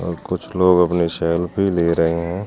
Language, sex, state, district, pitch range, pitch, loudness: Hindi, male, Rajasthan, Jaisalmer, 85-90 Hz, 85 Hz, -18 LUFS